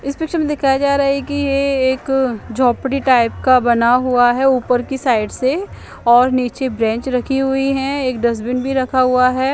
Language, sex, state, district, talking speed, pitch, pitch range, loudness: Hindi, female, Chandigarh, Chandigarh, 200 wpm, 260 Hz, 245-270 Hz, -16 LUFS